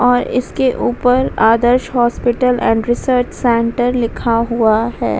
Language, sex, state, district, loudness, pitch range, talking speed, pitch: Hindi, female, Bihar, Vaishali, -15 LUFS, 235-250 Hz, 125 wpm, 240 Hz